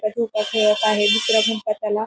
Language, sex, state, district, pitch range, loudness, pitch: Marathi, female, Maharashtra, Pune, 215-220 Hz, -19 LUFS, 215 Hz